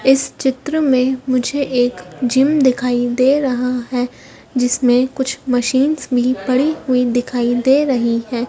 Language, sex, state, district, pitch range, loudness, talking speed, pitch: Hindi, female, Madhya Pradesh, Dhar, 245-265 Hz, -16 LUFS, 140 wpm, 255 Hz